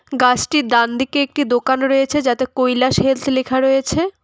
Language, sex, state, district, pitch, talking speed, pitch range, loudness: Bengali, female, West Bengal, Cooch Behar, 265 Hz, 140 wpm, 255-275 Hz, -16 LUFS